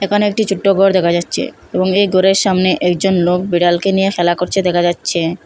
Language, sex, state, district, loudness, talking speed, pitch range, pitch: Bengali, female, Assam, Hailakandi, -14 LUFS, 210 wpm, 175-195 Hz, 185 Hz